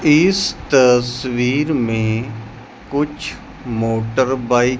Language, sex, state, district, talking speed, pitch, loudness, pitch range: Hindi, male, Chandigarh, Chandigarh, 85 wpm, 125 Hz, -17 LUFS, 115-140 Hz